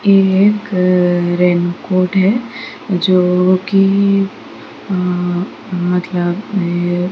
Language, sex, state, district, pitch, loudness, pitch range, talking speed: Hindi, female, Odisha, Sambalpur, 185 Hz, -14 LUFS, 180-195 Hz, 50 wpm